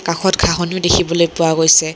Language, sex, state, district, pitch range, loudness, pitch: Assamese, female, Assam, Kamrup Metropolitan, 160-180 Hz, -14 LUFS, 170 Hz